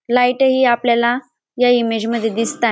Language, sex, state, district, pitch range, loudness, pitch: Marathi, female, Maharashtra, Dhule, 235-250 Hz, -16 LUFS, 240 Hz